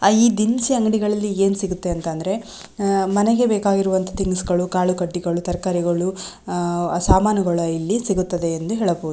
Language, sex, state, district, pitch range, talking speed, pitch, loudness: Kannada, female, Karnataka, Belgaum, 175-205 Hz, 120 wpm, 190 Hz, -20 LUFS